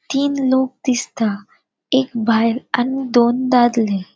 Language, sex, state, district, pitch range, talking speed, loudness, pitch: Konkani, female, Goa, North and South Goa, 230-265 Hz, 115 wpm, -17 LUFS, 245 Hz